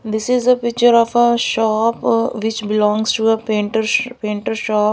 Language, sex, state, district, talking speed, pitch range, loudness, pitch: English, female, Maharashtra, Gondia, 185 wpm, 215-235 Hz, -16 LUFS, 225 Hz